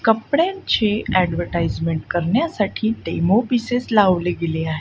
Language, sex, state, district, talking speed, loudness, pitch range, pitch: Marathi, female, Maharashtra, Gondia, 100 wpm, -20 LUFS, 170-230 Hz, 210 Hz